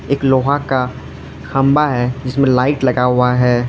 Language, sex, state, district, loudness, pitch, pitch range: Hindi, male, Arunachal Pradesh, Lower Dibang Valley, -15 LUFS, 130 Hz, 125-140 Hz